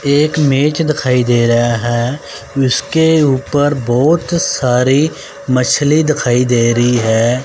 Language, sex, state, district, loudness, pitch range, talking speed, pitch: Hindi, male, Chandigarh, Chandigarh, -13 LUFS, 120-150 Hz, 120 wpm, 130 Hz